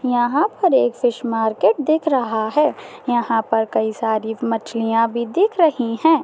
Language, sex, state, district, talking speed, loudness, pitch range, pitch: Hindi, female, Maharashtra, Dhule, 165 wpm, -19 LUFS, 225-290 Hz, 235 Hz